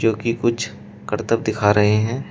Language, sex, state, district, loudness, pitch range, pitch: Hindi, male, Uttar Pradesh, Shamli, -20 LUFS, 105-115 Hz, 110 Hz